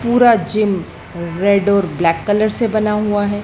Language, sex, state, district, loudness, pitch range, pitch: Hindi, male, Madhya Pradesh, Dhar, -16 LUFS, 190-215 Hz, 205 Hz